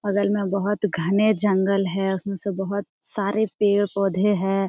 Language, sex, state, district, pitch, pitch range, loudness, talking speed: Hindi, female, Jharkhand, Jamtara, 200 Hz, 195-205 Hz, -22 LUFS, 165 wpm